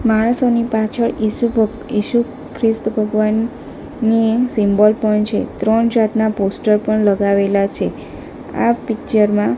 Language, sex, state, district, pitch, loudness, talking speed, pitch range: Gujarati, female, Gujarat, Gandhinagar, 220 Hz, -16 LUFS, 125 wpm, 210-230 Hz